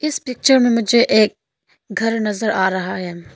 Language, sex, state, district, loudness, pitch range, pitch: Hindi, female, Arunachal Pradesh, Longding, -17 LUFS, 190-240 Hz, 220 Hz